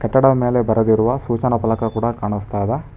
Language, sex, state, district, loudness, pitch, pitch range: Kannada, male, Karnataka, Bangalore, -18 LUFS, 115 Hz, 110-125 Hz